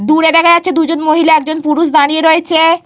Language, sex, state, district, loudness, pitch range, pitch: Bengali, female, Jharkhand, Jamtara, -10 LUFS, 310-330 Hz, 320 Hz